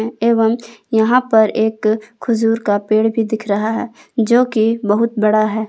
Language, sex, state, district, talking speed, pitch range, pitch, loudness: Hindi, female, Jharkhand, Palamu, 170 wpm, 215-230 Hz, 220 Hz, -16 LUFS